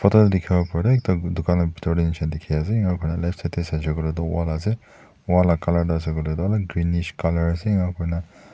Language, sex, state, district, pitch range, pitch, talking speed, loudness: Nagamese, male, Nagaland, Dimapur, 80-90 Hz, 85 Hz, 205 wpm, -22 LUFS